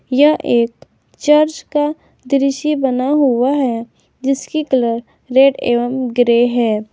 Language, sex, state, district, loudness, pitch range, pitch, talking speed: Hindi, female, Jharkhand, Garhwa, -15 LUFS, 240-285 Hz, 265 Hz, 120 wpm